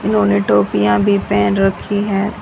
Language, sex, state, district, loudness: Hindi, female, Haryana, Charkhi Dadri, -15 LUFS